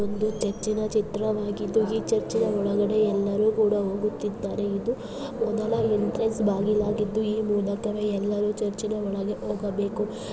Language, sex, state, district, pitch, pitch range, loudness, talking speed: Kannada, female, Karnataka, Bijapur, 210 Hz, 205-215 Hz, -26 LUFS, 150 wpm